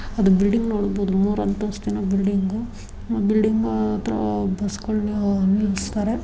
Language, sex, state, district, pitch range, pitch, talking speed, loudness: Kannada, female, Karnataka, Dharwad, 195-210 Hz, 200 Hz, 95 wpm, -22 LUFS